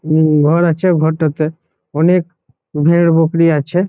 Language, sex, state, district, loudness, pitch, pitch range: Bengali, male, West Bengal, Jhargram, -13 LUFS, 160 Hz, 155-170 Hz